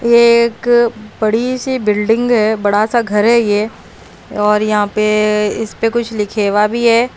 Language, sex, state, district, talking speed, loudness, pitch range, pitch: Hindi, female, Haryana, Rohtak, 175 wpm, -14 LUFS, 210-235 Hz, 220 Hz